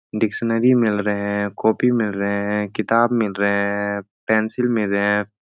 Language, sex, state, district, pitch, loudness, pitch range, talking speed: Hindi, male, Uttar Pradesh, Etah, 105 Hz, -20 LUFS, 100-115 Hz, 175 wpm